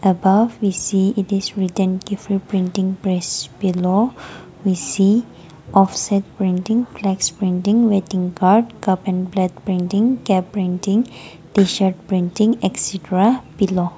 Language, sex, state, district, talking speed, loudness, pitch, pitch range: English, female, Nagaland, Kohima, 115 wpm, -18 LUFS, 195 Hz, 185-205 Hz